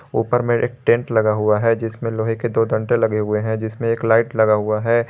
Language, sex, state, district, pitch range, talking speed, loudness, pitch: Hindi, male, Jharkhand, Garhwa, 110-115 Hz, 245 wpm, -19 LUFS, 115 Hz